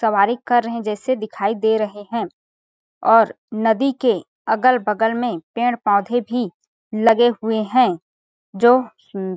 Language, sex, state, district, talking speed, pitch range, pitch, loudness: Hindi, female, Chhattisgarh, Balrampur, 135 wpm, 210-240 Hz, 225 Hz, -19 LUFS